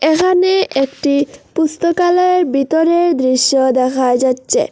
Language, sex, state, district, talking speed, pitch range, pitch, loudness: Bengali, female, Assam, Hailakandi, 90 wpm, 260-345 Hz, 290 Hz, -14 LUFS